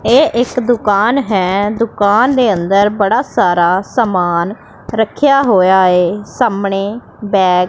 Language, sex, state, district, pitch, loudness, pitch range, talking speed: Punjabi, female, Punjab, Pathankot, 205 Hz, -13 LUFS, 185-235 Hz, 125 wpm